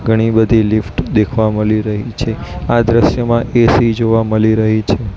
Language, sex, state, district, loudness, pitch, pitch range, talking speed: Gujarati, male, Gujarat, Gandhinagar, -13 LUFS, 110 Hz, 110-115 Hz, 175 wpm